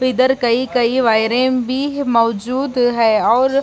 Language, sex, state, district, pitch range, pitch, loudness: Hindi, female, Bihar, Gopalganj, 235-260 Hz, 250 Hz, -16 LUFS